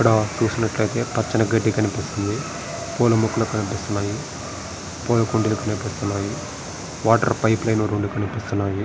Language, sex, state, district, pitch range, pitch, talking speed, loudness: Telugu, male, Andhra Pradesh, Srikakulam, 100-115 Hz, 110 Hz, 75 wpm, -22 LUFS